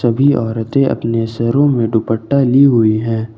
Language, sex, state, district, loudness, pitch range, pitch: Hindi, male, Jharkhand, Ranchi, -14 LUFS, 115-135 Hz, 115 Hz